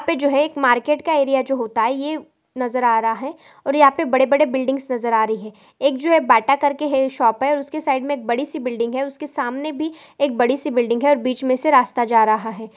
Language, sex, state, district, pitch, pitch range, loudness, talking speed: Hindi, female, Goa, North and South Goa, 270 Hz, 240-290 Hz, -19 LUFS, 245 wpm